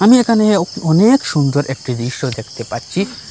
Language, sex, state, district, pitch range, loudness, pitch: Bengali, male, Assam, Hailakandi, 130-215 Hz, -15 LUFS, 160 Hz